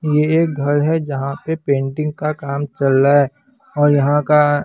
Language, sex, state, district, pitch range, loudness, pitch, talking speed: Hindi, male, Bihar, West Champaran, 140-150 Hz, -17 LUFS, 145 Hz, 195 wpm